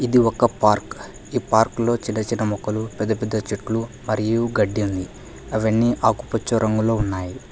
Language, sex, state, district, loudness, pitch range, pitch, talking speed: Telugu, male, Telangana, Hyderabad, -21 LUFS, 105-115 Hz, 110 Hz, 145 wpm